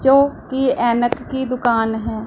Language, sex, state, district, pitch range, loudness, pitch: Hindi, female, Punjab, Pathankot, 230-265 Hz, -18 LUFS, 240 Hz